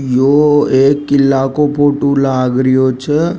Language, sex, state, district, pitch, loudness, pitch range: Rajasthani, male, Rajasthan, Nagaur, 140 Hz, -12 LUFS, 130-145 Hz